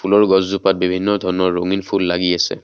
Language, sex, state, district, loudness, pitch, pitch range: Assamese, male, Assam, Kamrup Metropolitan, -17 LUFS, 95 Hz, 90-100 Hz